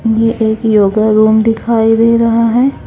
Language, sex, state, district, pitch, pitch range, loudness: Hindi, female, Chhattisgarh, Raipur, 225 Hz, 220-230 Hz, -11 LUFS